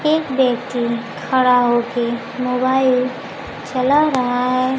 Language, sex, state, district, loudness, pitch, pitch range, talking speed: Hindi, female, Bihar, Kaimur, -18 LUFS, 255 Hz, 245-260 Hz, 100 wpm